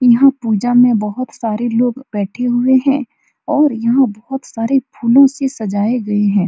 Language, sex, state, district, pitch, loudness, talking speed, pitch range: Hindi, female, Bihar, Supaul, 245 Hz, -15 LUFS, 165 wpm, 225-270 Hz